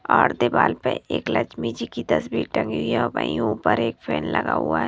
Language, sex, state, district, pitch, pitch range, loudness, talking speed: Hindi, female, Bihar, Katihar, 110 Hz, 80-115 Hz, -23 LUFS, 235 wpm